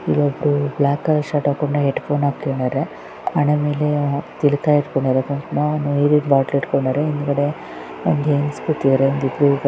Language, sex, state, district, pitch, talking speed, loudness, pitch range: Kannada, female, Karnataka, Raichur, 145 Hz, 110 wpm, -19 LUFS, 140-150 Hz